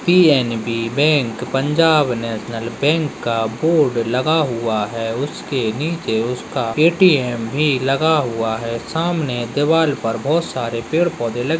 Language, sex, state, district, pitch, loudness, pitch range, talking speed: Hindi, male, Uttarakhand, Tehri Garhwal, 130 Hz, -18 LUFS, 115-160 Hz, 135 wpm